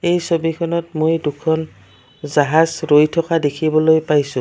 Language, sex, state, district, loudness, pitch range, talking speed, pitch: Assamese, female, Assam, Kamrup Metropolitan, -17 LUFS, 145-165 Hz, 120 wpm, 160 Hz